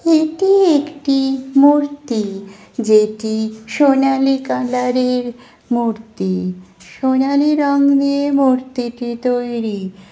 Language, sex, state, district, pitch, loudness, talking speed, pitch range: Bengali, female, West Bengal, Kolkata, 250 Hz, -16 LUFS, 75 wpm, 220-280 Hz